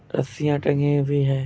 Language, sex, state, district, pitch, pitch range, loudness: Hindi, male, Bihar, Kishanganj, 145 Hz, 140-145 Hz, -22 LUFS